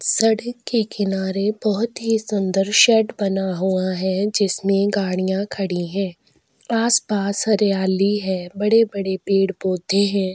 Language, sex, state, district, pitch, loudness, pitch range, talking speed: Hindi, female, Goa, North and South Goa, 200 Hz, -20 LUFS, 190-215 Hz, 115 wpm